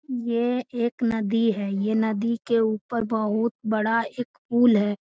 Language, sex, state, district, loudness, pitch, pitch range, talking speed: Hindi, female, Bihar, Jamui, -24 LUFS, 230 Hz, 220-235 Hz, 155 wpm